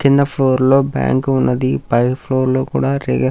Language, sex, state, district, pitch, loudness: Telugu, male, Andhra Pradesh, Krishna, 130 Hz, -16 LUFS